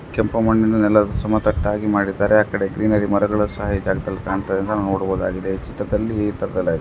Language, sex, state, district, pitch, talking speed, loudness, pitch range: Kannada, male, Karnataka, Dharwad, 105 Hz, 140 wpm, -20 LUFS, 95-105 Hz